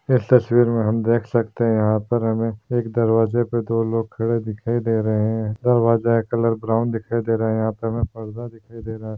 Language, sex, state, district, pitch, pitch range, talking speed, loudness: Hindi, male, Bihar, Madhepura, 115 Hz, 110-115 Hz, 235 wpm, -20 LUFS